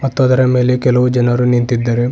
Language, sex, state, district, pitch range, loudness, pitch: Kannada, male, Karnataka, Bidar, 120-125 Hz, -13 LUFS, 125 Hz